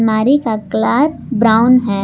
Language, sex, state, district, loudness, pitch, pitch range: Hindi, female, Jharkhand, Palamu, -13 LUFS, 225 Hz, 220-255 Hz